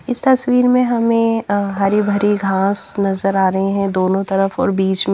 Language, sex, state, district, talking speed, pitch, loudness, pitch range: Hindi, female, Haryana, Jhajjar, 200 wpm, 200 Hz, -16 LUFS, 195-230 Hz